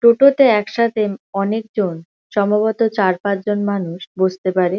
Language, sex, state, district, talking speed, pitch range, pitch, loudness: Bengali, female, West Bengal, Kolkata, 115 wpm, 190-220 Hz, 205 Hz, -17 LUFS